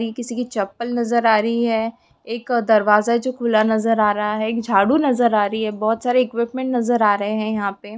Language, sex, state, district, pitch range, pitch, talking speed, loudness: Hindi, female, West Bengal, Purulia, 215-235 Hz, 225 Hz, 240 wpm, -19 LUFS